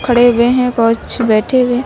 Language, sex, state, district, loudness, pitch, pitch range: Hindi, female, Uttar Pradesh, Lucknow, -12 LUFS, 245 Hz, 230-250 Hz